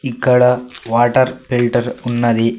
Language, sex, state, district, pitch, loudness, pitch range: Telugu, male, Andhra Pradesh, Sri Satya Sai, 120 Hz, -15 LUFS, 120-125 Hz